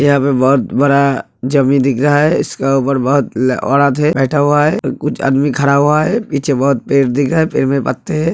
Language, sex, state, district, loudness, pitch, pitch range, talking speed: Hindi, male, Uttar Pradesh, Hamirpur, -13 LUFS, 140 Hz, 135-145 Hz, 225 wpm